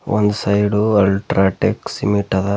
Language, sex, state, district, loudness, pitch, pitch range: Kannada, male, Karnataka, Bidar, -17 LUFS, 100 Hz, 95-105 Hz